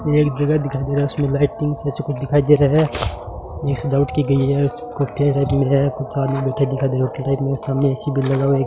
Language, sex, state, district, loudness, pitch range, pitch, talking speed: Hindi, male, Rajasthan, Bikaner, -19 LUFS, 135-145 Hz, 140 Hz, 240 wpm